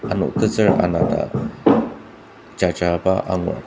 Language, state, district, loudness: Ao, Nagaland, Dimapur, -19 LUFS